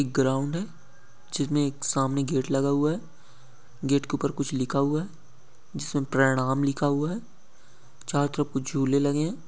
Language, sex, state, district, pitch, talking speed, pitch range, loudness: Hindi, male, West Bengal, Malda, 140 Hz, 175 wpm, 135-145 Hz, -26 LUFS